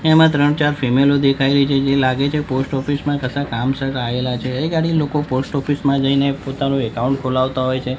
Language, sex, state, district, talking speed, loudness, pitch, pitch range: Gujarati, male, Gujarat, Gandhinagar, 210 wpm, -18 LUFS, 135 Hz, 130-145 Hz